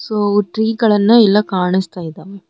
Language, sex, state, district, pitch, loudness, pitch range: Kannada, female, Karnataka, Bidar, 205 Hz, -14 LUFS, 190-215 Hz